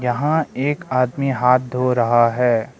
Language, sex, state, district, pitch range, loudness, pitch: Hindi, male, Arunachal Pradesh, Lower Dibang Valley, 125-135 Hz, -18 LUFS, 125 Hz